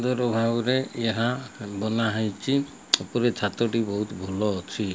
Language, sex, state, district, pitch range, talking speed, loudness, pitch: Odia, male, Odisha, Malkangiri, 105-120 Hz, 110 wpm, -26 LUFS, 115 Hz